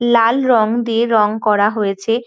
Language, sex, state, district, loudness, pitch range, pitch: Bengali, female, West Bengal, North 24 Parganas, -15 LUFS, 210-235 Hz, 225 Hz